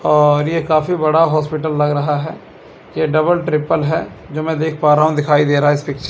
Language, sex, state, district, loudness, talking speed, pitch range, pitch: Hindi, male, Chandigarh, Chandigarh, -15 LUFS, 235 wpm, 150-160 Hz, 155 Hz